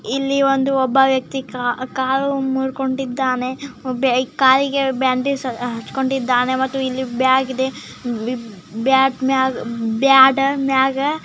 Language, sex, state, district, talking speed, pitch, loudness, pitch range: Kannada, female, Karnataka, Chamarajanagar, 100 wpm, 265 Hz, -18 LUFS, 255-270 Hz